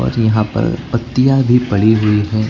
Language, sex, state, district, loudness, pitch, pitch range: Hindi, male, Uttar Pradesh, Lucknow, -14 LUFS, 110 Hz, 105-120 Hz